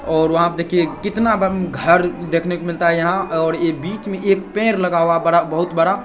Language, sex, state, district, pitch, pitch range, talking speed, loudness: Hindi, male, Bihar, Saharsa, 170 Hz, 165-190 Hz, 230 wpm, -17 LUFS